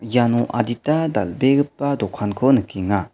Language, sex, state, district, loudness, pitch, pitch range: Garo, male, Meghalaya, West Garo Hills, -20 LUFS, 120 Hz, 105-140 Hz